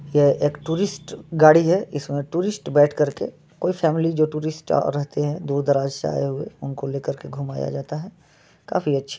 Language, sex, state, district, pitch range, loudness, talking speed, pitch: Hindi, male, Bihar, Muzaffarpur, 140-160 Hz, -22 LUFS, 185 wpm, 145 Hz